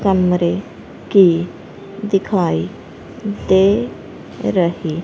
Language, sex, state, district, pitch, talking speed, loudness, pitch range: Hindi, female, Haryana, Rohtak, 185 Hz, 60 wpm, -17 LUFS, 170-200 Hz